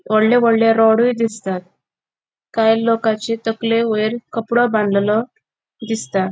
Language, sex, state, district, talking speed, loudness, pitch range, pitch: Konkani, female, Goa, North and South Goa, 105 wpm, -17 LUFS, 215-230 Hz, 225 Hz